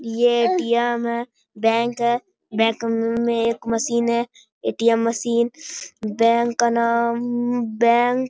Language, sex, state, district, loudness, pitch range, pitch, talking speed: Hindi, male, Bihar, Bhagalpur, -21 LUFS, 230-240 Hz, 235 Hz, 130 wpm